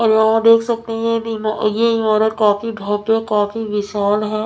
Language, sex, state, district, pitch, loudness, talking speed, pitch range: Hindi, female, Maharashtra, Mumbai Suburban, 220 Hz, -17 LUFS, 190 wpm, 210-225 Hz